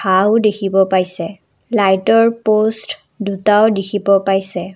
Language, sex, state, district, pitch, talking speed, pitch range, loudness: Assamese, female, Assam, Kamrup Metropolitan, 200 Hz, 90 wpm, 190-215 Hz, -15 LUFS